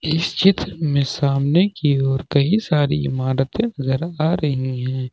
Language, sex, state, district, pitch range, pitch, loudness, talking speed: Hindi, male, Jharkhand, Ranchi, 135-160 Hz, 145 Hz, -19 LUFS, 150 wpm